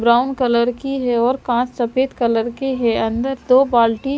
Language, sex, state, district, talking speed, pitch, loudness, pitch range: Hindi, female, Himachal Pradesh, Shimla, 185 wpm, 245 Hz, -18 LUFS, 235-265 Hz